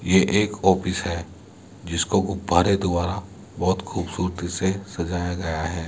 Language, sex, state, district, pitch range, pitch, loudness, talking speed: Hindi, male, Uttar Pradesh, Muzaffarnagar, 85-95 Hz, 90 Hz, -23 LUFS, 135 wpm